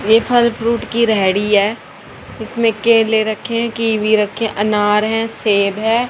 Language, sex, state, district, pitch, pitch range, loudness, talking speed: Hindi, female, Haryana, Rohtak, 225 Hz, 210-230 Hz, -15 LUFS, 155 wpm